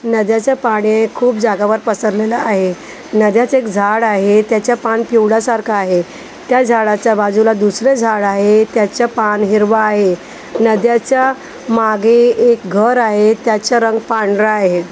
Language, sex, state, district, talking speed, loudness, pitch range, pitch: Marathi, female, Maharashtra, Gondia, 135 wpm, -13 LUFS, 210-235 Hz, 220 Hz